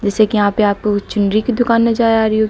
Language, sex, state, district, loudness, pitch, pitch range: Hindi, female, Uttar Pradesh, Lucknow, -15 LUFS, 215 Hz, 205-230 Hz